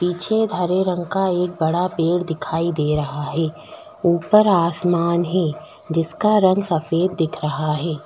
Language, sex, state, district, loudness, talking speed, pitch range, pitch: Hindi, female, Delhi, New Delhi, -20 LUFS, 150 wpm, 160-185 Hz, 170 Hz